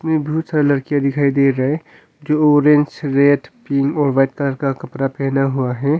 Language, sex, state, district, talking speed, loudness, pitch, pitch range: Hindi, male, Arunachal Pradesh, Longding, 190 wpm, -17 LUFS, 140 Hz, 135-150 Hz